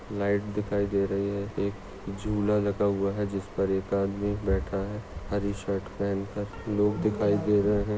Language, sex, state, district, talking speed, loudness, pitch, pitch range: Hindi, male, Maharashtra, Nagpur, 180 wpm, -29 LUFS, 100 Hz, 100-105 Hz